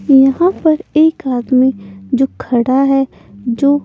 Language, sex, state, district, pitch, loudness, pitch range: Hindi, female, Punjab, Pathankot, 265 Hz, -14 LUFS, 250-285 Hz